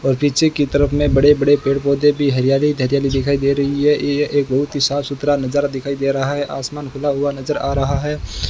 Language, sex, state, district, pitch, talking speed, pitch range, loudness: Hindi, male, Rajasthan, Bikaner, 140 Hz, 240 wpm, 140-145 Hz, -17 LUFS